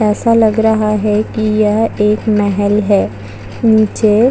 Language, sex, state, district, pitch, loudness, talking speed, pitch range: Hindi, female, Chhattisgarh, Jashpur, 215 Hz, -13 LUFS, 155 wpm, 205-220 Hz